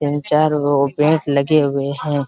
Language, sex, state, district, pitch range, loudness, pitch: Hindi, male, Jharkhand, Sahebganj, 140-150 Hz, -17 LUFS, 145 Hz